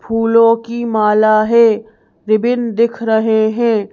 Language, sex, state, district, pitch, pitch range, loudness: Hindi, female, Madhya Pradesh, Bhopal, 225 Hz, 215-230 Hz, -13 LUFS